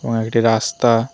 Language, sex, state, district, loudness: Bengali, male, Tripura, West Tripura, -17 LUFS